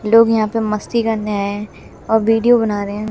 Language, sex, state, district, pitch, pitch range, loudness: Hindi, female, Bihar, West Champaran, 220 Hz, 210-225 Hz, -16 LUFS